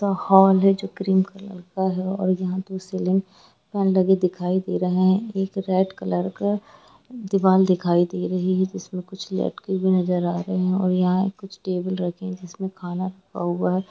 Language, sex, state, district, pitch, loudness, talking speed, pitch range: Hindi, female, Jharkhand, Jamtara, 185 Hz, -22 LUFS, 205 wpm, 180-190 Hz